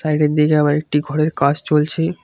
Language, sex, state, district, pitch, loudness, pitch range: Bengali, male, West Bengal, Cooch Behar, 150 Hz, -17 LUFS, 150-155 Hz